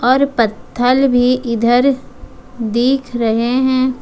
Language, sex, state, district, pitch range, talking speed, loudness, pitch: Hindi, female, Jharkhand, Ranchi, 235-260 Hz, 105 wpm, -15 LUFS, 250 Hz